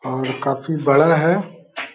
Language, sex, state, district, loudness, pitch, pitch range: Hindi, male, Uttar Pradesh, Deoria, -18 LUFS, 150 Hz, 135-165 Hz